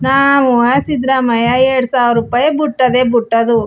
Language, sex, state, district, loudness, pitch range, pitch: Kannada, female, Karnataka, Chamarajanagar, -12 LUFS, 235-270 Hz, 255 Hz